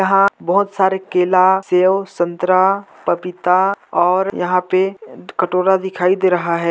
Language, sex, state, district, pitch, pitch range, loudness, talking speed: Hindi, male, Chhattisgarh, Jashpur, 185 Hz, 180-195 Hz, -16 LUFS, 135 wpm